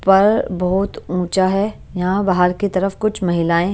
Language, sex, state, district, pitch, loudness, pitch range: Hindi, female, Chandigarh, Chandigarh, 190 Hz, -18 LUFS, 180-200 Hz